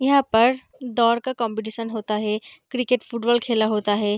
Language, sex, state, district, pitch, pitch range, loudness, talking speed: Hindi, female, Bihar, Darbhanga, 230 Hz, 220-250 Hz, -22 LUFS, 170 wpm